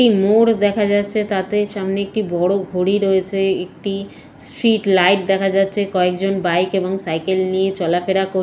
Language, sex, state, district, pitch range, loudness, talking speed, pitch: Bengali, female, West Bengal, Purulia, 185-205 Hz, -18 LUFS, 155 wpm, 195 Hz